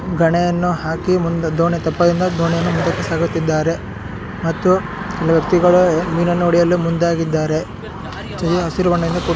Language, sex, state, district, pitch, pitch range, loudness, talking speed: Kannada, male, Karnataka, Shimoga, 170 Hz, 165-175 Hz, -17 LUFS, 110 wpm